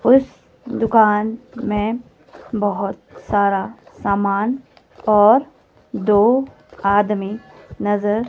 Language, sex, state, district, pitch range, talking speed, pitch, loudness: Hindi, female, Himachal Pradesh, Shimla, 205-235 Hz, 70 wpm, 210 Hz, -18 LUFS